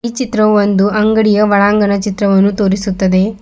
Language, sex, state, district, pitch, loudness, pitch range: Kannada, female, Karnataka, Bidar, 205 Hz, -12 LUFS, 200-215 Hz